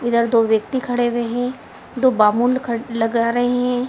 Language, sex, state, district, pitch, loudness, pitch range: Hindi, female, Bihar, Samastipur, 240 Hz, -19 LUFS, 230-245 Hz